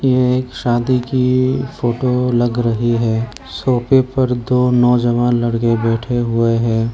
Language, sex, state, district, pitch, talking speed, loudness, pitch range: Hindi, male, Arunachal Pradesh, Lower Dibang Valley, 120 Hz, 140 wpm, -16 LUFS, 115-125 Hz